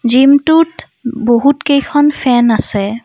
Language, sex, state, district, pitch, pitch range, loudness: Assamese, female, Assam, Kamrup Metropolitan, 260 Hz, 235-285 Hz, -11 LUFS